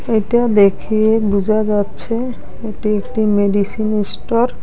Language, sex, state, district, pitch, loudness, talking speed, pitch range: Bengali, female, West Bengal, Alipurduar, 215 Hz, -16 LUFS, 115 wpm, 205-230 Hz